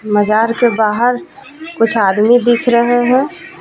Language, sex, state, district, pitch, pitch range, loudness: Hindi, female, Jharkhand, Ranchi, 240 Hz, 225-255 Hz, -13 LUFS